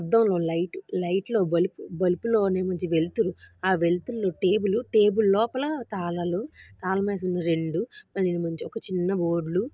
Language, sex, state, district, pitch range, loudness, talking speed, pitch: Telugu, female, Andhra Pradesh, Visakhapatnam, 175-210 Hz, -26 LUFS, 165 wpm, 185 Hz